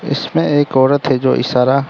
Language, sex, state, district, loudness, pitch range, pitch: Hindi, male, Arunachal Pradesh, Lower Dibang Valley, -14 LUFS, 130-140 Hz, 135 Hz